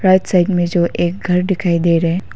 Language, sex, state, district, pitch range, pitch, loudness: Hindi, female, Arunachal Pradesh, Papum Pare, 170-185 Hz, 180 Hz, -15 LUFS